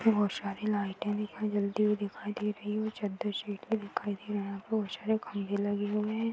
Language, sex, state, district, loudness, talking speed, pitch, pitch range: Hindi, female, Uttar Pradesh, Hamirpur, -33 LUFS, 245 wpm, 210 Hz, 205-215 Hz